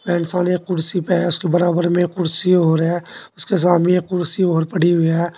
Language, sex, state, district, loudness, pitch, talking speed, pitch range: Hindi, male, Uttar Pradesh, Saharanpur, -17 LUFS, 175 Hz, 235 wpm, 170-180 Hz